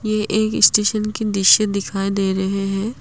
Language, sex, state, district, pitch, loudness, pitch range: Hindi, female, Assam, Kamrup Metropolitan, 205 Hz, -17 LUFS, 195-215 Hz